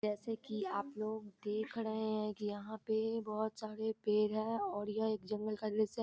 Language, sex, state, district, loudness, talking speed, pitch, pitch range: Maithili, female, Bihar, Darbhanga, -39 LUFS, 200 wpm, 215 Hz, 210-220 Hz